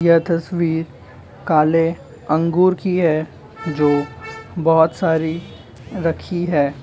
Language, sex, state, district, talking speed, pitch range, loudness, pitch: Hindi, male, Maharashtra, Chandrapur, 95 wpm, 145-170 Hz, -18 LUFS, 160 Hz